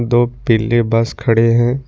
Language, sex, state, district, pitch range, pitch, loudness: Hindi, male, Jharkhand, Ranchi, 115-120 Hz, 120 Hz, -15 LUFS